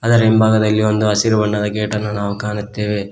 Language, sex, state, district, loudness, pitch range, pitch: Kannada, male, Karnataka, Koppal, -16 LUFS, 105-110 Hz, 105 Hz